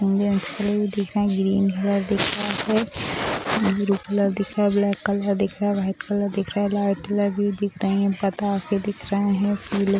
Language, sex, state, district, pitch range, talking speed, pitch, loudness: Hindi, female, Bihar, Sitamarhi, 200-205 Hz, 220 wpm, 200 Hz, -23 LUFS